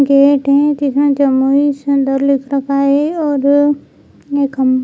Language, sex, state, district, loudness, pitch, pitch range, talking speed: Hindi, female, Bihar, Jamui, -13 LUFS, 280 Hz, 275-285 Hz, 150 wpm